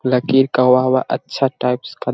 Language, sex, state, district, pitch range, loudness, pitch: Hindi, male, Bihar, Jahanabad, 125-135 Hz, -16 LUFS, 130 Hz